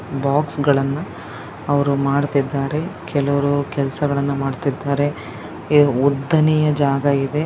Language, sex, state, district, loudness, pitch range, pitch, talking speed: Kannada, female, Karnataka, Dakshina Kannada, -19 LUFS, 140-145 Hz, 140 Hz, 80 wpm